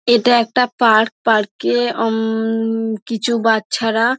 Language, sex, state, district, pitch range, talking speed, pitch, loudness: Bengali, female, West Bengal, Dakshin Dinajpur, 225-235 Hz, 115 wpm, 225 Hz, -16 LUFS